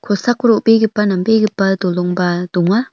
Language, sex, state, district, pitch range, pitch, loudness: Garo, female, Meghalaya, North Garo Hills, 180-225 Hz, 205 Hz, -15 LUFS